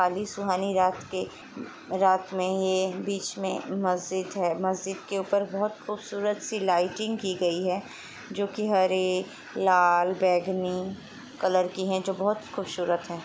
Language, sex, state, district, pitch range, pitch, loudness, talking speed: Hindi, female, Chhattisgarh, Sukma, 185-200 Hz, 190 Hz, -27 LUFS, 145 wpm